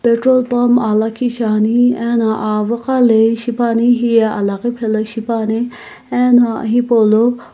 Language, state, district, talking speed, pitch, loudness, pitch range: Sumi, Nagaland, Kohima, 145 wpm, 235 Hz, -14 LUFS, 220-245 Hz